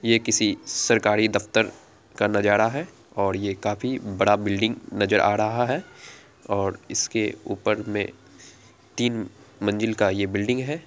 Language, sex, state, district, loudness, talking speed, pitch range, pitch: Angika, female, Bihar, Araria, -24 LUFS, 145 wpm, 100-115 Hz, 105 Hz